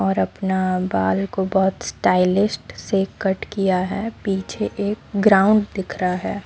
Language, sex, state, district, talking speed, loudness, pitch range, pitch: Hindi, female, Odisha, Sambalpur, 150 wpm, -20 LUFS, 185-205 Hz, 195 Hz